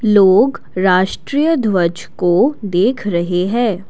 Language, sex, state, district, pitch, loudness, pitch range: Hindi, female, Assam, Kamrup Metropolitan, 190 Hz, -15 LUFS, 180-240 Hz